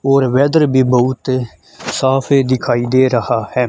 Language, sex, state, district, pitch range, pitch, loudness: Hindi, male, Haryana, Charkhi Dadri, 125-135 Hz, 130 Hz, -14 LUFS